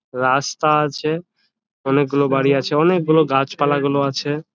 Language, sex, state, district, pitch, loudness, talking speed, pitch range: Bengali, male, West Bengal, Jalpaiguri, 145 Hz, -18 LUFS, 160 wpm, 140-155 Hz